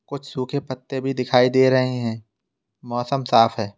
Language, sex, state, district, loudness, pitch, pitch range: Hindi, male, Uttar Pradesh, Lalitpur, -21 LUFS, 130 Hz, 120-130 Hz